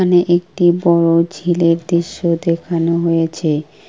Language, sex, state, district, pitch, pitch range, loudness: Bengali, female, West Bengal, Kolkata, 170 Hz, 165-175 Hz, -15 LUFS